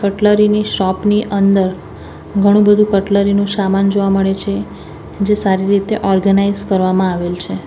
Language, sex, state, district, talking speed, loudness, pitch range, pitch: Gujarati, female, Gujarat, Valsad, 155 wpm, -14 LUFS, 190-200 Hz, 195 Hz